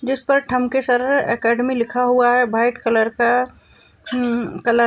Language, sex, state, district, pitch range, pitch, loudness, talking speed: Hindi, female, Maharashtra, Chandrapur, 235-255 Hz, 245 Hz, -18 LUFS, 160 wpm